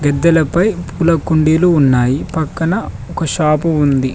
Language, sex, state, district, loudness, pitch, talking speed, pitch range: Telugu, male, Telangana, Mahabubabad, -14 LUFS, 160 Hz, 115 wpm, 145-170 Hz